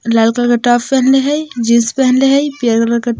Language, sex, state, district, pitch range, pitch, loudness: Bajjika, female, Bihar, Vaishali, 235-270 Hz, 240 Hz, -12 LUFS